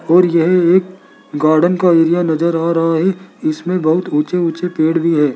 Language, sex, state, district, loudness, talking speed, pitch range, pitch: Hindi, male, Rajasthan, Jaipur, -14 LUFS, 190 wpm, 160-180 Hz, 170 Hz